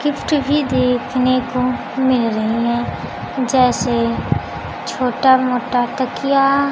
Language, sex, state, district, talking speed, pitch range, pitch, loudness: Hindi, female, Bihar, Kaimur, 100 wpm, 235-265 Hz, 255 Hz, -17 LUFS